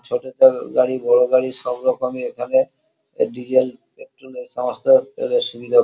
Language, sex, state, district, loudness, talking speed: Bengali, male, West Bengal, Kolkata, -19 LUFS, 155 wpm